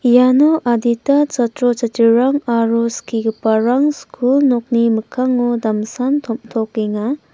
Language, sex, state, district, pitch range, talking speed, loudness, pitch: Garo, female, Meghalaya, West Garo Hills, 230-260 Hz, 90 wpm, -16 LUFS, 240 Hz